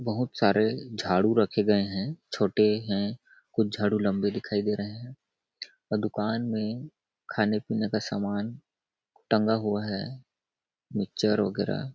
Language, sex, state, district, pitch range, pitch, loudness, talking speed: Hindi, male, Chhattisgarh, Balrampur, 105-115 Hz, 105 Hz, -28 LUFS, 140 wpm